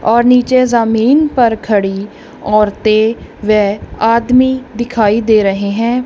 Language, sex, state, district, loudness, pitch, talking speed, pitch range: Hindi, female, Punjab, Kapurthala, -12 LUFS, 225 Hz, 120 wpm, 210-245 Hz